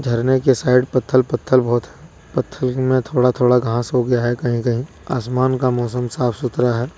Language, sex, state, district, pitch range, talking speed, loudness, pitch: Hindi, male, Jharkhand, Deoghar, 120-130 Hz, 190 wpm, -18 LUFS, 125 Hz